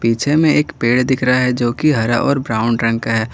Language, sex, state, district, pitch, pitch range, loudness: Hindi, male, Jharkhand, Garhwa, 120 Hz, 115-140 Hz, -15 LUFS